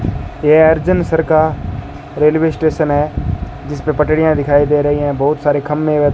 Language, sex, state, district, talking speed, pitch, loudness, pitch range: Hindi, male, Rajasthan, Bikaner, 165 wpm, 150 Hz, -14 LUFS, 145-155 Hz